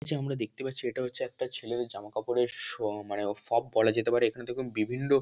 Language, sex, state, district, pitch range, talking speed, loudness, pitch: Bengali, male, West Bengal, North 24 Parganas, 110-130 Hz, 230 wpm, -31 LUFS, 120 Hz